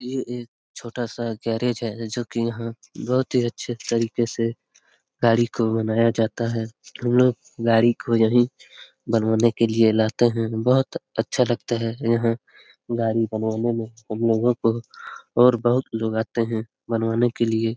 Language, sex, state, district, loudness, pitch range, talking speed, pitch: Hindi, male, Bihar, Lakhisarai, -22 LUFS, 115-120 Hz, 160 wpm, 115 Hz